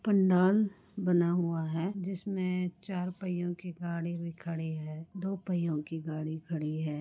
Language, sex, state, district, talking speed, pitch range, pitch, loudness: Hindi, female, Goa, North and South Goa, 155 wpm, 160-185 Hz, 175 Hz, -33 LUFS